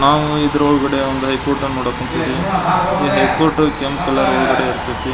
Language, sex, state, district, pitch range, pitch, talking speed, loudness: Kannada, male, Karnataka, Belgaum, 135-160 Hz, 145 Hz, 165 wpm, -16 LUFS